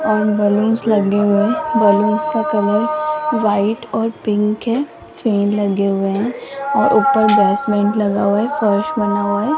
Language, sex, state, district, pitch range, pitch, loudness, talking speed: Hindi, female, Rajasthan, Jaipur, 205-225 Hz, 210 Hz, -16 LUFS, 165 wpm